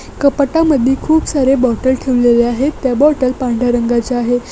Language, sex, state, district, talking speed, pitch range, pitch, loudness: Marathi, female, Maharashtra, Nagpur, 145 wpm, 245-280 Hz, 260 Hz, -13 LUFS